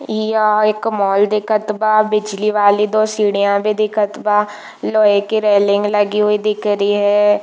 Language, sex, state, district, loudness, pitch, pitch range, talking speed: Hindi, female, Chhattisgarh, Bilaspur, -15 LUFS, 210 Hz, 205-215 Hz, 155 wpm